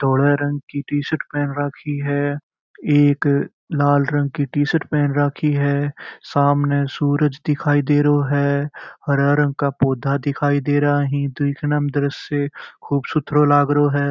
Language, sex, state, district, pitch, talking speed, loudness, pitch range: Marwari, male, Rajasthan, Churu, 145 Hz, 165 wpm, -19 LUFS, 140-145 Hz